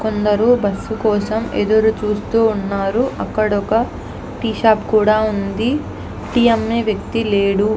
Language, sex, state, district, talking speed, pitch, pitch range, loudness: Telugu, female, Andhra Pradesh, Anantapur, 130 wpm, 215 Hz, 210-225 Hz, -17 LUFS